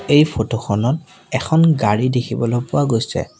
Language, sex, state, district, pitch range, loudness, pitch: Assamese, male, Assam, Sonitpur, 115-155 Hz, -18 LUFS, 125 Hz